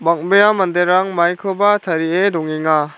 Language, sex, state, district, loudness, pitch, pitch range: Garo, male, Meghalaya, South Garo Hills, -15 LUFS, 175 Hz, 165-195 Hz